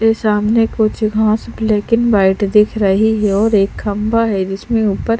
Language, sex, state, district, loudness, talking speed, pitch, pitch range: Hindi, female, Bihar, Patna, -15 LUFS, 185 wpm, 215 Hz, 205-225 Hz